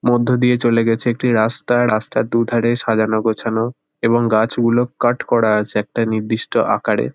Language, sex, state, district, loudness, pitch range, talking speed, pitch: Bengali, male, West Bengal, Kolkata, -17 LUFS, 110-120 Hz, 145 wpm, 115 Hz